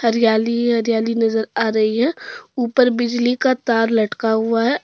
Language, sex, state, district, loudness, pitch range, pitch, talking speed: Hindi, female, Jharkhand, Deoghar, -18 LUFS, 225-245 Hz, 230 Hz, 175 wpm